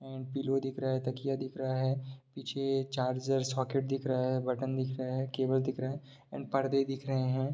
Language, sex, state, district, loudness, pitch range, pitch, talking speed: Hindi, male, Bihar, Sitamarhi, -33 LUFS, 130-135 Hz, 130 Hz, 225 wpm